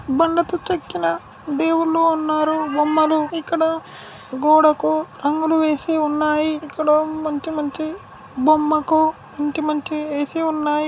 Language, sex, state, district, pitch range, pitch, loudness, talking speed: Telugu, female, Telangana, Karimnagar, 300-320 Hz, 310 Hz, -19 LUFS, 100 wpm